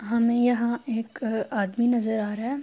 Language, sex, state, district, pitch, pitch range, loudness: Urdu, female, Andhra Pradesh, Anantapur, 235 Hz, 220-240 Hz, -25 LUFS